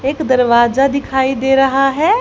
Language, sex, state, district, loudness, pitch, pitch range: Hindi, female, Haryana, Charkhi Dadri, -13 LUFS, 270 Hz, 265-275 Hz